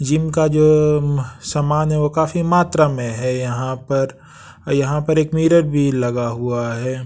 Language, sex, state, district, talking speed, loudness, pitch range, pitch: Hindi, male, Bihar, West Champaran, 180 wpm, -18 LUFS, 130-155 Hz, 145 Hz